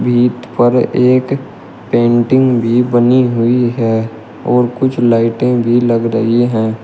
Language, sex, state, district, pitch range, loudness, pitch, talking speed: Hindi, male, Uttar Pradesh, Shamli, 115-125 Hz, -12 LUFS, 120 Hz, 130 wpm